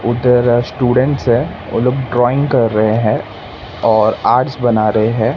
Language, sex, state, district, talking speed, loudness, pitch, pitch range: Hindi, male, Maharashtra, Mumbai Suburban, 155 wpm, -14 LUFS, 120 Hz, 115-125 Hz